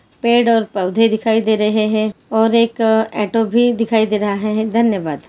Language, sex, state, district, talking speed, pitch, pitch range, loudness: Hindi, female, Jharkhand, Jamtara, 180 wpm, 220 Hz, 215-230 Hz, -16 LUFS